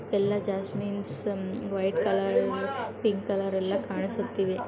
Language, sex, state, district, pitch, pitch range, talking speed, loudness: Kannada, female, Karnataka, Gulbarga, 195 Hz, 190-205 Hz, 100 wpm, -29 LUFS